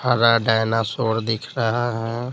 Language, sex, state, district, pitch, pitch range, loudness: Hindi, male, Bihar, Patna, 115 Hz, 110-120 Hz, -21 LUFS